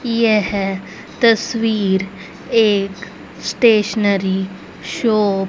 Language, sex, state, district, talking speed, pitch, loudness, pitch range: Hindi, female, Haryana, Rohtak, 65 wpm, 205 Hz, -17 LUFS, 195-225 Hz